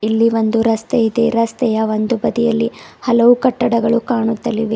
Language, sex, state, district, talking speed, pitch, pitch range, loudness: Kannada, female, Karnataka, Bidar, 125 wpm, 230 Hz, 225-235 Hz, -16 LUFS